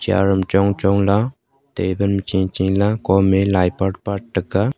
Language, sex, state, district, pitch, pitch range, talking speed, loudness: Wancho, male, Arunachal Pradesh, Longding, 100 Hz, 95-100 Hz, 165 wpm, -18 LUFS